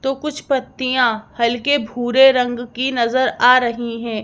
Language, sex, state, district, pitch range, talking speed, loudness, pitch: Hindi, male, Madhya Pradesh, Bhopal, 235-265 Hz, 155 wpm, -17 LUFS, 250 Hz